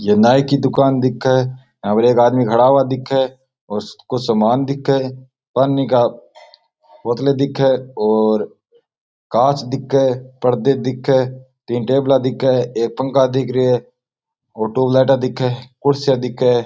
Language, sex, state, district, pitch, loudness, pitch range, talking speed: Rajasthani, male, Rajasthan, Nagaur, 130 Hz, -16 LUFS, 125-135 Hz, 130 wpm